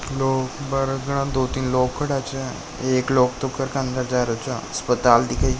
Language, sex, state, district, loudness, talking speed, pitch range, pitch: Marwari, male, Rajasthan, Nagaur, -22 LUFS, 195 wpm, 125-135 Hz, 130 Hz